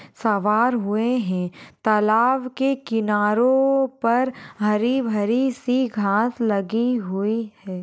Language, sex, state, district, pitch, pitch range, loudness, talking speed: Hindi, female, Chhattisgarh, Raigarh, 225 Hz, 210-250 Hz, -21 LUFS, 100 wpm